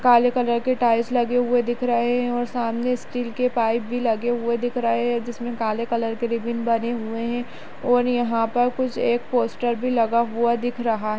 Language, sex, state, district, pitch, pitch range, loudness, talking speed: Kumaoni, female, Uttarakhand, Uttarkashi, 240 Hz, 235-245 Hz, -22 LUFS, 210 wpm